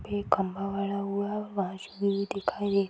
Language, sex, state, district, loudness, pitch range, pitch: Hindi, female, Bihar, East Champaran, -30 LUFS, 195-200 Hz, 200 Hz